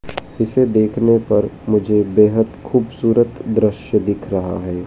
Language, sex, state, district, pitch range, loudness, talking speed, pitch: Hindi, male, Madhya Pradesh, Dhar, 105-115 Hz, -17 LUFS, 125 wpm, 110 Hz